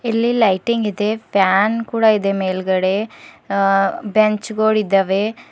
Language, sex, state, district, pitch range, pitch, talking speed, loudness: Kannada, female, Karnataka, Bidar, 195-220 Hz, 210 Hz, 100 wpm, -17 LUFS